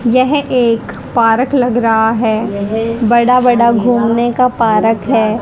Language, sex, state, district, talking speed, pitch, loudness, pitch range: Hindi, female, Haryana, Charkhi Dadri, 135 wpm, 235 Hz, -12 LUFS, 225-245 Hz